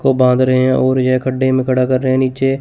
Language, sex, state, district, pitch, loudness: Hindi, male, Chandigarh, Chandigarh, 130 Hz, -14 LUFS